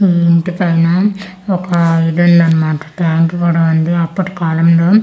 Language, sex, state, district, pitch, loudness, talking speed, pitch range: Telugu, female, Andhra Pradesh, Manyam, 170 Hz, -12 LUFS, 145 wpm, 165-180 Hz